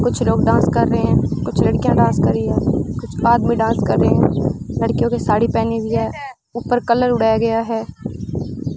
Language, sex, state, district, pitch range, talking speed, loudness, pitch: Hindi, female, Rajasthan, Bikaner, 225-245 Hz, 200 wpm, -17 LUFS, 230 Hz